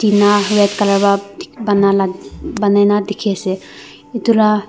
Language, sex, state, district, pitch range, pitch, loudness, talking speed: Nagamese, female, Nagaland, Dimapur, 200-210 Hz, 205 Hz, -14 LUFS, 155 wpm